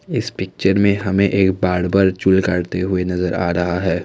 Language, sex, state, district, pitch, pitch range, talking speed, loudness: Hindi, male, Assam, Kamrup Metropolitan, 95 Hz, 90-95 Hz, 190 wpm, -17 LUFS